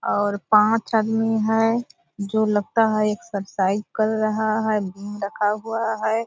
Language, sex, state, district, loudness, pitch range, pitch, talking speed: Hindi, female, Bihar, Purnia, -22 LUFS, 205-225 Hz, 215 Hz, 145 wpm